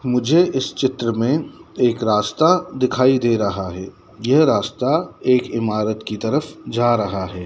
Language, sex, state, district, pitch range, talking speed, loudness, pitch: Hindi, male, Madhya Pradesh, Dhar, 105-130 Hz, 155 wpm, -19 LUFS, 120 Hz